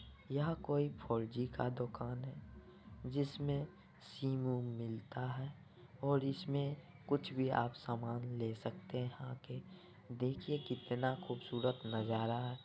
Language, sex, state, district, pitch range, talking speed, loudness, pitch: Hindi, male, Bihar, Saran, 120-140 Hz, 120 wpm, -41 LUFS, 125 Hz